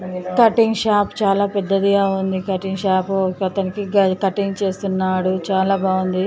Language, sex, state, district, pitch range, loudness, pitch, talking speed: Telugu, female, Andhra Pradesh, Chittoor, 190-200 Hz, -19 LUFS, 195 Hz, 125 wpm